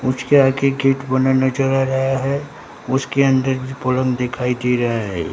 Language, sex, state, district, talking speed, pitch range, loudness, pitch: Hindi, male, Bihar, Katihar, 160 wpm, 130-135 Hz, -18 LUFS, 130 Hz